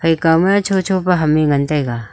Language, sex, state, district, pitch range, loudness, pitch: Wancho, female, Arunachal Pradesh, Longding, 150-185 Hz, -15 LUFS, 165 Hz